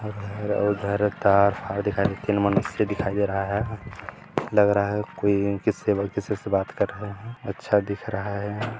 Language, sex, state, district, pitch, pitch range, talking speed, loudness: Hindi, male, Chhattisgarh, Balrampur, 100 Hz, 100-105 Hz, 190 wpm, -25 LUFS